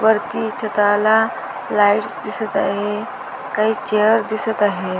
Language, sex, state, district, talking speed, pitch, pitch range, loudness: Marathi, female, Maharashtra, Dhule, 110 wpm, 215 Hz, 205-220 Hz, -18 LUFS